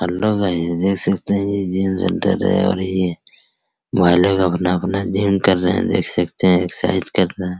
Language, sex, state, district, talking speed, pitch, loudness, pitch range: Hindi, male, Bihar, Araria, 205 wpm, 95 Hz, -18 LUFS, 90-95 Hz